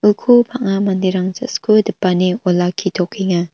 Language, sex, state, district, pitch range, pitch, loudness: Garo, female, Meghalaya, North Garo Hills, 185-215 Hz, 190 Hz, -16 LUFS